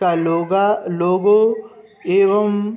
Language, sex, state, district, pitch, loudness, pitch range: Hindi, male, Uttar Pradesh, Budaun, 200 Hz, -16 LUFS, 180-210 Hz